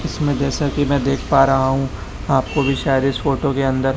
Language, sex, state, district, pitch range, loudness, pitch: Hindi, male, Chhattisgarh, Raipur, 135-140 Hz, -18 LUFS, 135 Hz